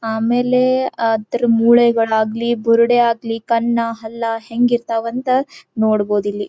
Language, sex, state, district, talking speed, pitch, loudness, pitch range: Kannada, female, Karnataka, Belgaum, 110 wpm, 230 Hz, -16 LUFS, 225-240 Hz